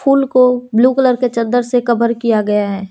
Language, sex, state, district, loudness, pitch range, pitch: Hindi, female, Jharkhand, Deoghar, -14 LUFS, 230-250 Hz, 245 Hz